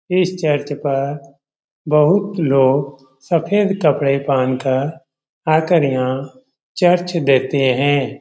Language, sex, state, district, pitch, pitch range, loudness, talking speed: Hindi, male, Bihar, Jamui, 145 Hz, 135-165 Hz, -17 LUFS, 95 wpm